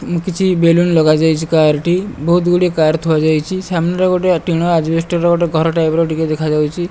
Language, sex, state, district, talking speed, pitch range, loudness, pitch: Odia, male, Odisha, Malkangiri, 155 wpm, 160-175 Hz, -14 LUFS, 165 Hz